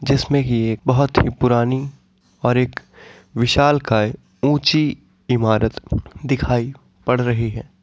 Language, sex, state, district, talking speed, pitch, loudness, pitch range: Hindi, male, Bihar, Sitamarhi, 115 wpm, 125 Hz, -19 LUFS, 115-140 Hz